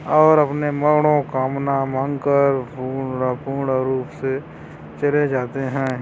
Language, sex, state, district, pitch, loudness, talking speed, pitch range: Hindi, male, Chhattisgarh, Korba, 135 Hz, -20 LUFS, 110 wpm, 130-145 Hz